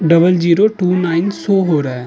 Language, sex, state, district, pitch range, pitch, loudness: Hindi, male, Uttar Pradesh, Jalaun, 165-185 Hz, 175 Hz, -14 LUFS